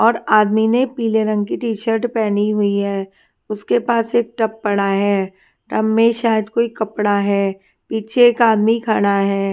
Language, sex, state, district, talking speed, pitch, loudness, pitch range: Hindi, female, Himachal Pradesh, Shimla, 175 wpm, 220 Hz, -17 LUFS, 200-230 Hz